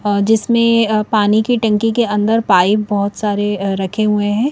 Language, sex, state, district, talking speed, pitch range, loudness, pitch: Hindi, female, Madhya Pradesh, Bhopal, 160 wpm, 205-225 Hz, -15 LUFS, 210 Hz